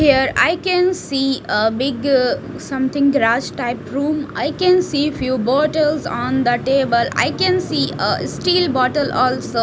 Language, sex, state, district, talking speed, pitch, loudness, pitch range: English, female, Punjab, Fazilka, 160 wpm, 275 Hz, -17 LUFS, 255-305 Hz